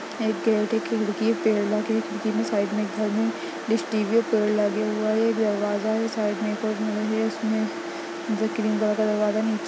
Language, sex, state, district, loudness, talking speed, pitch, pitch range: Hindi, female, Bihar, Lakhisarai, -25 LUFS, 155 wpm, 215 Hz, 210-220 Hz